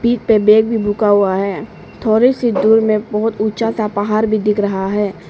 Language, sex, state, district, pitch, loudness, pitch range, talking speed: Hindi, female, Arunachal Pradesh, Papum Pare, 215 Hz, -15 LUFS, 205-220 Hz, 205 wpm